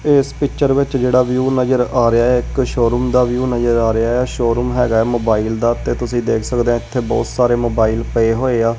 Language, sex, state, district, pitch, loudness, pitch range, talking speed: Punjabi, male, Punjab, Kapurthala, 120 Hz, -16 LUFS, 115-125 Hz, 245 wpm